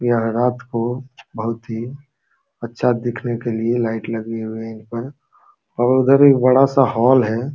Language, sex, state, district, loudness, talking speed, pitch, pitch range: Hindi, male, Uttar Pradesh, Jalaun, -18 LUFS, 160 wpm, 120 Hz, 115-130 Hz